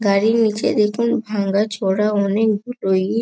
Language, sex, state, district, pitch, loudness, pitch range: Bengali, female, West Bengal, North 24 Parganas, 210 Hz, -18 LUFS, 200-220 Hz